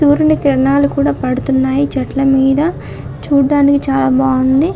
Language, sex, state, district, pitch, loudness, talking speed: Telugu, female, Andhra Pradesh, Chittoor, 270 Hz, -13 LUFS, 115 wpm